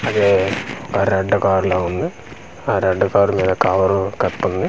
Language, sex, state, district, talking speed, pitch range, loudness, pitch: Telugu, male, Andhra Pradesh, Manyam, 165 wpm, 95-100 Hz, -18 LUFS, 95 Hz